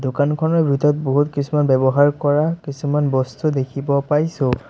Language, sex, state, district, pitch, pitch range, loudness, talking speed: Assamese, male, Assam, Sonitpur, 145 Hz, 140-150 Hz, -18 LUFS, 130 wpm